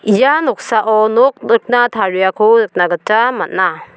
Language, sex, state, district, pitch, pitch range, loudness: Garo, female, Meghalaya, South Garo Hills, 220 Hz, 210-240 Hz, -13 LUFS